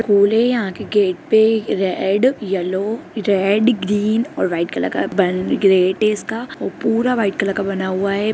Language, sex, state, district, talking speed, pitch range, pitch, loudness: Hindi, female, Bihar, Begusarai, 195 wpm, 195-225 Hz, 205 Hz, -18 LUFS